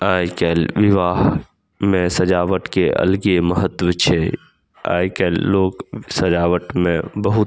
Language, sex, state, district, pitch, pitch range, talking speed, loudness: Maithili, male, Bihar, Saharsa, 90 Hz, 90-95 Hz, 130 wpm, -18 LUFS